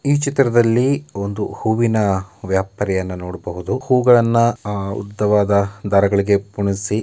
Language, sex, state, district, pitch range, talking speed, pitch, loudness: Kannada, male, Karnataka, Mysore, 100-120 Hz, 85 wpm, 105 Hz, -18 LUFS